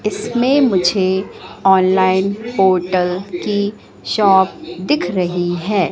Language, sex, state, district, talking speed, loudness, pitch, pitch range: Hindi, female, Madhya Pradesh, Katni, 90 wpm, -16 LUFS, 190 Hz, 180-205 Hz